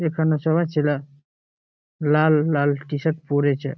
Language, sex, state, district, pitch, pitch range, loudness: Bengali, male, West Bengal, Jalpaiguri, 150 Hz, 145-160 Hz, -21 LUFS